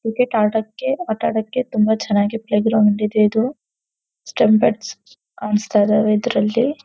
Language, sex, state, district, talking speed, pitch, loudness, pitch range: Kannada, female, Karnataka, Dharwad, 115 wpm, 220 Hz, -18 LUFS, 210-235 Hz